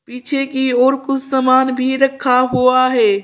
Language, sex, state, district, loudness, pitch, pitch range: Hindi, female, Uttar Pradesh, Saharanpur, -15 LUFS, 260 Hz, 250-265 Hz